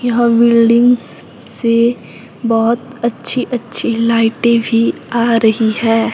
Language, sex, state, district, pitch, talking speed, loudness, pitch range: Hindi, female, Himachal Pradesh, Shimla, 235 Hz, 105 wpm, -13 LUFS, 230-235 Hz